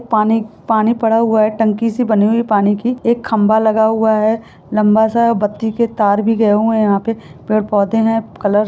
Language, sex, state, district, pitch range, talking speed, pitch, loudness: Hindi, female, Jharkhand, Sahebganj, 210-225 Hz, 220 wpm, 220 Hz, -14 LUFS